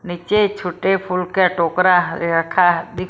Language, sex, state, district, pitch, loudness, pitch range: Hindi, female, Maharashtra, Mumbai Suburban, 180 Hz, -17 LUFS, 175-185 Hz